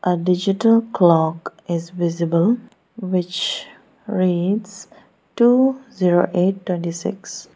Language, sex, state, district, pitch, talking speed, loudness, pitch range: English, female, Arunachal Pradesh, Lower Dibang Valley, 185 Hz, 95 wpm, -19 LUFS, 175-225 Hz